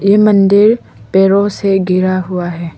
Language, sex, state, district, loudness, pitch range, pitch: Hindi, female, Arunachal Pradesh, Lower Dibang Valley, -12 LUFS, 185-200 Hz, 195 Hz